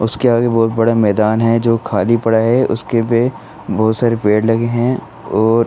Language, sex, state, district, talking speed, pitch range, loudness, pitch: Hindi, male, Uttar Pradesh, Muzaffarnagar, 200 wpm, 110-115 Hz, -15 LUFS, 115 Hz